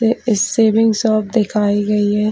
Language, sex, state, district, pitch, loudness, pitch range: Hindi, female, Chhattisgarh, Bilaspur, 215 Hz, -15 LUFS, 210-225 Hz